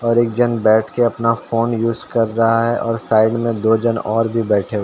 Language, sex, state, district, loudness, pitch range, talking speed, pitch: Hindi, male, Uttar Pradesh, Ghazipur, -17 LUFS, 110-115 Hz, 260 wpm, 115 Hz